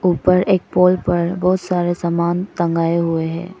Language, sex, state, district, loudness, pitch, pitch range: Hindi, female, Arunachal Pradesh, Papum Pare, -17 LUFS, 175 Hz, 170-185 Hz